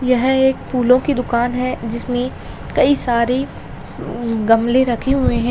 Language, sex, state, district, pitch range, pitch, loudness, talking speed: Hindi, female, Bihar, Kishanganj, 235-260 Hz, 250 Hz, -17 LUFS, 150 wpm